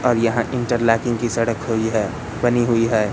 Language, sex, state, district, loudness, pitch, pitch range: Hindi, male, Madhya Pradesh, Katni, -20 LUFS, 115 Hz, 115-120 Hz